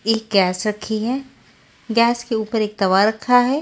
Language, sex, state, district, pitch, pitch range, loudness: Hindi, female, Bihar, West Champaran, 220 Hz, 210-240 Hz, -19 LUFS